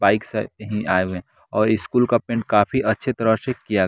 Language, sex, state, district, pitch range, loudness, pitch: Hindi, male, Bihar, West Champaran, 105-120 Hz, -21 LUFS, 110 Hz